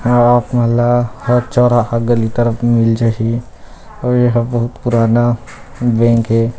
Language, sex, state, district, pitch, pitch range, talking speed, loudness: Chhattisgarhi, male, Chhattisgarh, Rajnandgaon, 120 Hz, 115-120 Hz, 135 wpm, -14 LUFS